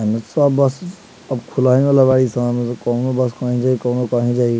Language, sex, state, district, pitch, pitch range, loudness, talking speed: Bhojpuri, male, Bihar, Muzaffarpur, 125 Hz, 120-130 Hz, -17 LUFS, 220 wpm